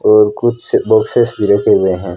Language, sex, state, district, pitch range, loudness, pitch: Hindi, female, Rajasthan, Bikaner, 100-115 Hz, -12 LUFS, 105 Hz